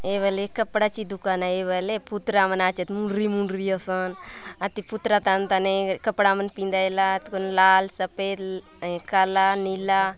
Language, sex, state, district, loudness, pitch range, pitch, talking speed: Halbi, female, Chhattisgarh, Bastar, -24 LUFS, 190-200 Hz, 195 Hz, 135 wpm